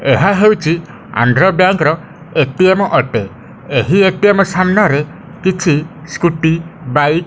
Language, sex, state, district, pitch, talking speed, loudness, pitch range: Odia, male, Odisha, Khordha, 165 Hz, 115 wpm, -13 LUFS, 145-190 Hz